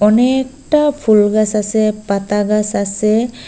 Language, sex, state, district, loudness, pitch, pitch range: Bengali, female, Assam, Hailakandi, -15 LUFS, 215 Hz, 210-245 Hz